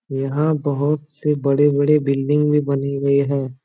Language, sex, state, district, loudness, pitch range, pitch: Hindi, male, Bihar, Supaul, -19 LUFS, 140-150 Hz, 140 Hz